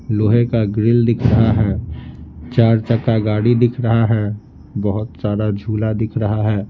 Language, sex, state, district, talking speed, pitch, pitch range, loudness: Hindi, male, Bihar, Patna, 160 wpm, 110 Hz, 105-115 Hz, -17 LUFS